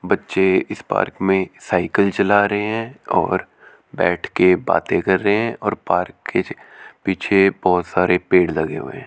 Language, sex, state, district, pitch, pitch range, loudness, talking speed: Hindi, male, Chandigarh, Chandigarh, 95 Hz, 90-100 Hz, -19 LUFS, 160 wpm